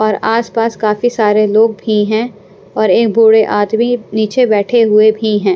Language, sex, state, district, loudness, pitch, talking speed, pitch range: Hindi, female, Punjab, Pathankot, -12 LUFS, 220 Hz, 175 wpm, 215-230 Hz